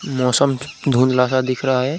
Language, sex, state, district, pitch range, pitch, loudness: Hindi, male, Uttar Pradesh, Budaun, 125-135 Hz, 130 Hz, -18 LUFS